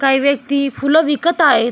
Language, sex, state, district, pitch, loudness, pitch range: Marathi, female, Maharashtra, Solapur, 280 Hz, -15 LUFS, 275-315 Hz